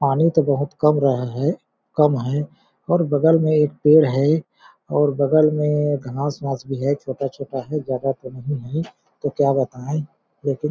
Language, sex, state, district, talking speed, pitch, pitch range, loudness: Hindi, male, Chhattisgarh, Balrampur, 175 wpm, 145 Hz, 135-150 Hz, -20 LUFS